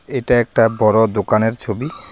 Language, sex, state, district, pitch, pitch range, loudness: Bengali, male, West Bengal, Alipurduar, 110 Hz, 110-120 Hz, -16 LUFS